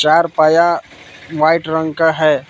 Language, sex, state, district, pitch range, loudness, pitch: Hindi, male, Jharkhand, Palamu, 155-165 Hz, -14 LUFS, 160 Hz